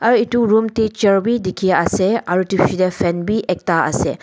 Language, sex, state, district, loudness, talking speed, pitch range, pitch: Nagamese, female, Nagaland, Dimapur, -17 LUFS, 225 wpm, 185-225 Hz, 195 Hz